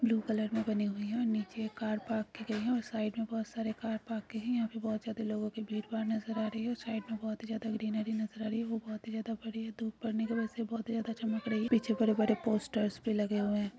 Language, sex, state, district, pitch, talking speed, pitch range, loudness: Hindi, female, Chhattisgarh, Jashpur, 220 Hz, 315 wpm, 215-225 Hz, -35 LUFS